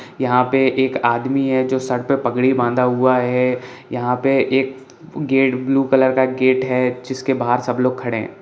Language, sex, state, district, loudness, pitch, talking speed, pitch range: Hindi, male, Bihar, Saran, -18 LUFS, 130 Hz, 190 wpm, 125-130 Hz